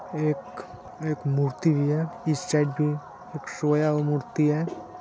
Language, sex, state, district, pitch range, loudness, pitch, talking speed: Hindi, male, Bihar, Saran, 145-155 Hz, -26 LUFS, 150 Hz, 145 wpm